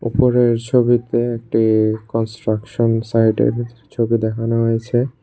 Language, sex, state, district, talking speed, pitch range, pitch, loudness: Bengali, male, Tripura, West Tripura, 90 wpm, 110-120 Hz, 115 Hz, -18 LUFS